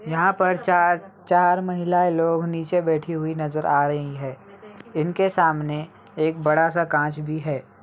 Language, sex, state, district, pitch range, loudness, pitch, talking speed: Hindi, male, Bihar, Begusarai, 150-180 Hz, -22 LUFS, 165 Hz, 140 wpm